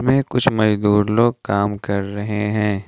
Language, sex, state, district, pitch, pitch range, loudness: Hindi, male, Jharkhand, Ranchi, 105 Hz, 105-115 Hz, -19 LUFS